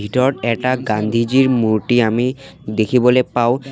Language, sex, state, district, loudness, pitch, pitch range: Assamese, male, Assam, Sonitpur, -16 LUFS, 120 Hz, 110-130 Hz